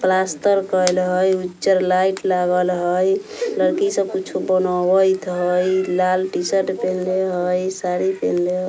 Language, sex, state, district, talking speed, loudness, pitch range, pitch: Bajjika, female, Bihar, Vaishali, 140 wpm, -19 LUFS, 180-190 Hz, 185 Hz